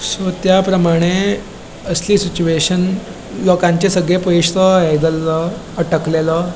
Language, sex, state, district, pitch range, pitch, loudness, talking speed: Konkani, male, Goa, North and South Goa, 165-190 Hz, 175 Hz, -15 LUFS, 100 wpm